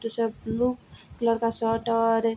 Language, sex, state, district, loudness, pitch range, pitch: Hindi, female, Bihar, Vaishali, -26 LUFS, 225-230 Hz, 230 Hz